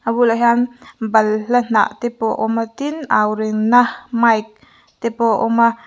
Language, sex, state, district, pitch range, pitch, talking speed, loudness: Mizo, female, Mizoram, Aizawl, 220-240 Hz, 230 Hz, 195 wpm, -17 LUFS